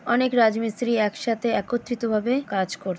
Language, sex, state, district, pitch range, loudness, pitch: Bengali, female, West Bengal, Jalpaiguri, 215-240 Hz, -23 LUFS, 230 Hz